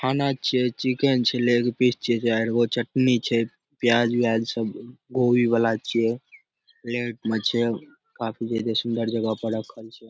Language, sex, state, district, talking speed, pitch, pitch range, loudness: Maithili, male, Bihar, Darbhanga, 155 wpm, 120 Hz, 115-125 Hz, -24 LUFS